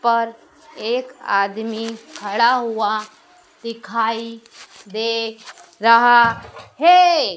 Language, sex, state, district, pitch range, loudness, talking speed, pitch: Hindi, female, Madhya Pradesh, Dhar, 225-255 Hz, -18 LUFS, 75 wpm, 230 Hz